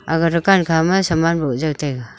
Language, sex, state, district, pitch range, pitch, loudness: Wancho, female, Arunachal Pradesh, Longding, 150-170 Hz, 165 Hz, -17 LUFS